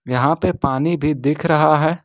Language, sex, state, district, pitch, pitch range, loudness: Hindi, male, Jharkhand, Ranchi, 155 Hz, 140-160 Hz, -17 LUFS